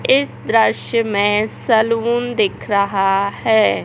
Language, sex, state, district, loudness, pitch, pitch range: Hindi, male, Madhya Pradesh, Katni, -17 LUFS, 220 Hz, 200-230 Hz